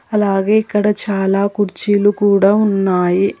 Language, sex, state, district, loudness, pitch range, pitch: Telugu, female, Telangana, Hyderabad, -15 LUFS, 195-210 Hz, 205 Hz